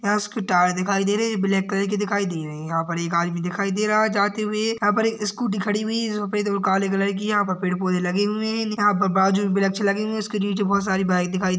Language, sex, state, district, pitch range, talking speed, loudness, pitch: Hindi, male, Maharashtra, Chandrapur, 190-210 Hz, 270 wpm, -22 LUFS, 200 Hz